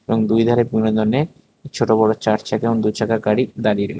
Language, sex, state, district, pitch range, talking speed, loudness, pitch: Bengali, male, Tripura, West Tripura, 110-115 Hz, 195 wpm, -18 LUFS, 110 Hz